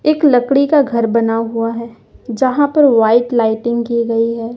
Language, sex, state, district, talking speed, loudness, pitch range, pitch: Hindi, female, Madhya Pradesh, Umaria, 185 wpm, -14 LUFS, 230-270 Hz, 235 Hz